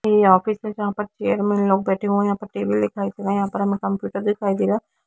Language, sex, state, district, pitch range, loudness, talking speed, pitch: Hindi, female, Bihar, Jamui, 190-210 Hz, -21 LUFS, 320 wpm, 200 Hz